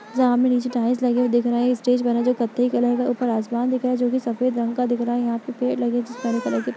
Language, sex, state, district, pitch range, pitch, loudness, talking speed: Hindi, female, Uttar Pradesh, Etah, 240-250 Hz, 245 Hz, -22 LUFS, 345 wpm